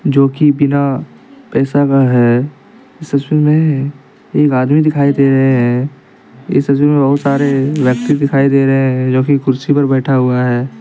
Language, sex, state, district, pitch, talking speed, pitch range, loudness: Hindi, male, Jharkhand, Deoghar, 140 Hz, 165 wpm, 130-145 Hz, -12 LUFS